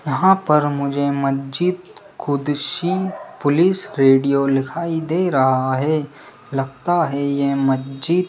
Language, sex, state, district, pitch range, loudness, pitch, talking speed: Hindi, male, Madhya Pradesh, Bhopal, 135-175 Hz, -19 LUFS, 145 Hz, 115 wpm